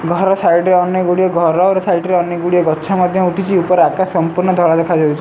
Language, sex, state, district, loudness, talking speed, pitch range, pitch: Odia, male, Odisha, Sambalpur, -13 LUFS, 230 wpm, 170-185 Hz, 180 Hz